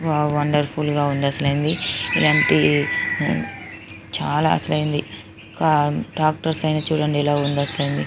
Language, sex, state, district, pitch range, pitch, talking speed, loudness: Telugu, female, Telangana, Karimnagar, 110-150 Hz, 145 Hz, 90 wpm, -20 LUFS